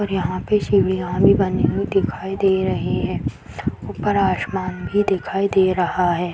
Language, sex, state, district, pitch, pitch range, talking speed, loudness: Hindi, female, Bihar, Jamui, 190 Hz, 185-195 Hz, 170 wpm, -20 LUFS